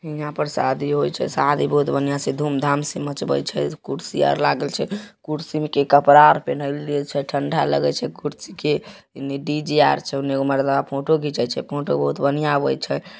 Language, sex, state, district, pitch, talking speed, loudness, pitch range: Maithili, male, Bihar, Samastipur, 140 Hz, 200 wpm, -20 LUFS, 140-150 Hz